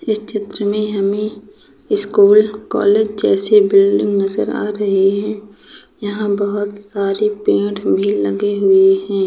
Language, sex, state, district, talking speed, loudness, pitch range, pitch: Hindi, female, Bihar, Gopalganj, 130 wpm, -15 LUFS, 195-210 Hz, 205 Hz